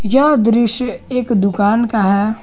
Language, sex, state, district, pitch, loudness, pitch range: Hindi, male, Jharkhand, Garhwa, 225 Hz, -14 LUFS, 205-250 Hz